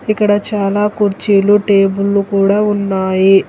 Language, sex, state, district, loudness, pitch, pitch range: Telugu, female, Telangana, Hyderabad, -13 LUFS, 200 Hz, 195-205 Hz